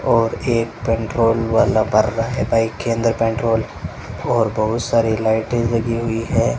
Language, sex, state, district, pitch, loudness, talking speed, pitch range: Hindi, male, Rajasthan, Bikaner, 115 Hz, -18 LUFS, 165 wpm, 110-115 Hz